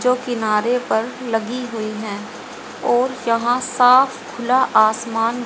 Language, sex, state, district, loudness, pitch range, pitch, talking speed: Hindi, female, Haryana, Rohtak, -18 LUFS, 220-250 Hz, 240 Hz, 120 wpm